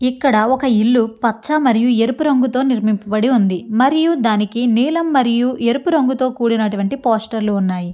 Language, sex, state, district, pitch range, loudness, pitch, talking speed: Telugu, female, Andhra Pradesh, Chittoor, 220-260 Hz, -16 LUFS, 240 Hz, 135 wpm